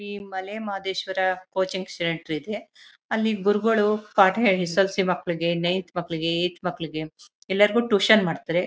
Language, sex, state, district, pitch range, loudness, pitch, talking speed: Kannada, female, Karnataka, Mysore, 175-205 Hz, -24 LUFS, 190 Hz, 150 wpm